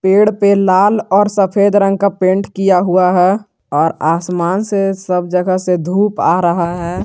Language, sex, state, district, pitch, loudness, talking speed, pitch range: Hindi, male, Jharkhand, Garhwa, 190 Hz, -13 LUFS, 180 wpm, 180-200 Hz